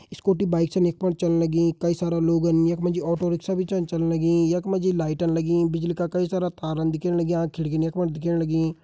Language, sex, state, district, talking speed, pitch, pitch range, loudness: Hindi, male, Uttarakhand, Tehri Garhwal, 235 wpm, 170 Hz, 165-175 Hz, -23 LUFS